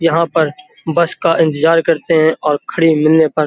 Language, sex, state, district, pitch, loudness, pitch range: Hindi, male, Uttar Pradesh, Hamirpur, 165 Hz, -14 LUFS, 155-165 Hz